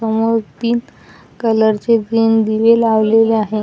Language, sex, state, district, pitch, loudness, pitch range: Marathi, female, Maharashtra, Washim, 225 Hz, -14 LUFS, 220-230 Hz